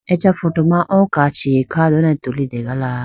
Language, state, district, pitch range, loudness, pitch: Idu Mishmi, Arunachal Pradesh, Lower Dibang Valley, 130-175 Hz, -15 LUFS, 155 Hz